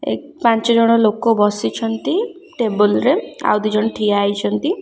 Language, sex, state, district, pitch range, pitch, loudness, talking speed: Odia, female, Odisha, Khordha, 210-235 Hz, 225 Hz, -17 LUFS, 150 wpm